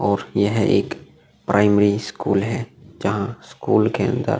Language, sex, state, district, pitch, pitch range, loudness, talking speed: Hindi, male, Uttar Pradesh, Jalaun, 100 Hz, 100-105 Hz, -20 LUFS, 150 wpm